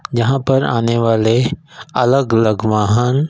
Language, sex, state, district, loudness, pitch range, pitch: Hindi, male, Punjab, Fazilka, -15 LUFS, 115-135 Hz, 120 Hz